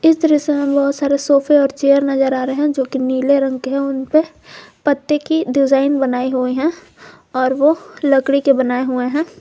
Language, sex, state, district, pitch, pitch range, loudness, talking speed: Hindi, female, Jharkhand, Garhwa, 275 Hz, 265-295 Hz, -16 LUFS, 215 wpm